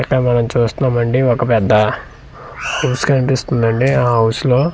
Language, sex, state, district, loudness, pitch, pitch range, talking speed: Telugu, male, Andhra Pradesh, Manyam, -15 LUFS, 125 Hz, 115-130 Hz, 115 wpm